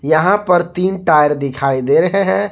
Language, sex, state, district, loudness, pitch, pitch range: Hindi, male, Jharkhand, Garhwa, -14 LUFS, 175 Hz, 145-190 Hz